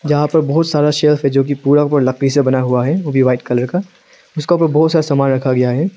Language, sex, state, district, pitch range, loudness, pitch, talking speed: Hindi, male, Arunachal Pradesh, Lower Dibang Valley, 130-155 Hz, -14 LUFS, 145 Hz, 280 wpm